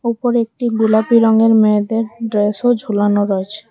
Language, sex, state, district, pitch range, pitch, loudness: Bengali, female, Tripura, West Tripura, 210-230 Hz, 225 Hz, -15 LUFS